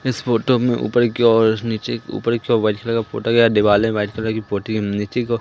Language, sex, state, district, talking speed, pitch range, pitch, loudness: Hindi, male, Madhya Pradesh, Katni, 255 wpm, 110-115 Hz, 115 Hz, -18 LUFS